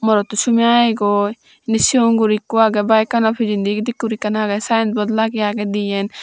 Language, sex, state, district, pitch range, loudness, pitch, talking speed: Chakma, female, Tripura, Dhalai, 210-225 Hz, -16 LUFS, 220 Hz, 175 wpm